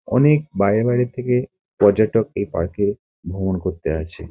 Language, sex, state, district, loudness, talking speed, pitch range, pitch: Bengali, male, West Bengal, Kolkata, -20 LUFS, 155 wpm, 90-125 Hz, 100 Hz